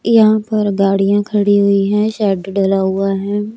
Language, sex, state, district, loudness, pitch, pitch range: Hindi, male, Chandigarh, Chandigarh, -14 LUFS, 205 Hz, 195-210 Hz